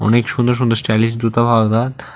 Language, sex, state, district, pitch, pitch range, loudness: Bengali, male, Tripura, West Tripura, 115 Hz, 115-120 Hz, -15 LUFS